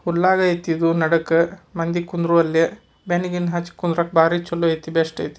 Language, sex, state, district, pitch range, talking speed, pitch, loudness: Kannada, male, Karnataka, Dharwad, 165-175 Hz, 80 wpm, 170 Hz, -20 LUFS